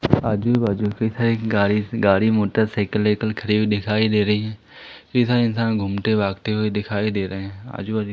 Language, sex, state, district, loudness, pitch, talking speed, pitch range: Hindi, male, Madhya Pradesh, Umaria, -21 LUFS, 105 Hz, 185 wpm, 105-110 Hz